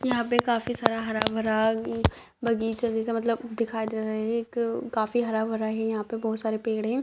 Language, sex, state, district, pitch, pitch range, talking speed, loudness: Hindi, female, Bihar, Madhepura, 225 Hz, 220-235 Hz, 195 wpm, -27 LUFS